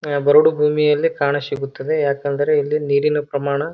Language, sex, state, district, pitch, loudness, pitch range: Kannada, male, Karnataka, Bijapur, 145 Hz, -18 LUFS, 140-150 Hz